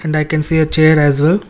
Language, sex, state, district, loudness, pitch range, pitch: English, male, Karnataka, Bangalore, -13 LUFS, 155-160 Hz, 155 Hz